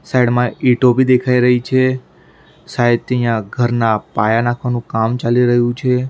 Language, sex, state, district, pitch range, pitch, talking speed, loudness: Gujarati, male, Maharashtra, Mumbai Suburban, 115-125 Hz, 120 Hz, 165 wpm, -15 LUFS